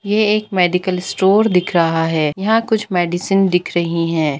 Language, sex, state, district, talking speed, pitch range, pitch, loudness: Hindi, female, Bihar, Gaya, 175 wpm, 170-200 Hz, 180 Hz, -16 LUFS